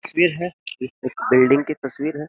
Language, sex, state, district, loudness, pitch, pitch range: Hindi, male, Uttar Pradesh, Jyotiba Phule Nagar, -20 LUFS, 150 Hz, 135-175 Hz